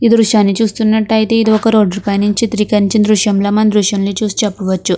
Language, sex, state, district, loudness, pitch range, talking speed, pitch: Telugu, female, Andhra Pradesh, Krishna, -12 LUFS, 200-220 Hz, 155 wpm, 215 Hz